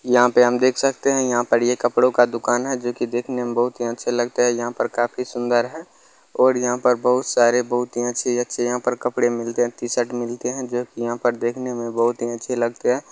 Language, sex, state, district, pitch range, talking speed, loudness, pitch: Maithili, male, Bihar, Purnia, 120-125 Hz, 255 wpm, -21 LUFS, 120 Hz